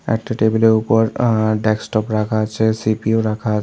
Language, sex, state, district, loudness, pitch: Bengali, male, Tripura, South Tripura, -17 LUFS, 110 Hz